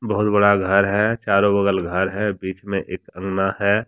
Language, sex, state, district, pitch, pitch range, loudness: Hindi, male, Jharkhand, Deoghar, 100 Hz, 95-105 Hz, -20 LUFS